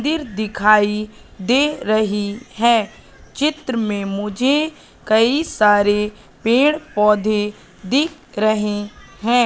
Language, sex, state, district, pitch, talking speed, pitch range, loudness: Hindi, female, Madhya Pradesh, Katni, 215 Hz, 95 wpm, 210-265 Hz, -18 LUFS